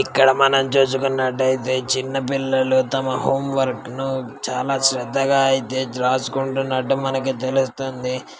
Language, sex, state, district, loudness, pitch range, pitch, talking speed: Telugu, male, Andhra Pradesh, Srikakulam, -20 LUFS, 130-135 Hz, 135 Hz, 105 wpm